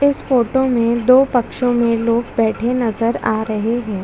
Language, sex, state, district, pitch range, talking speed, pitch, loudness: Hindi, female, Chhattisgarh, Bastar, 230-250 Hz, 180 wpm, 235 Hz, -16 LUFS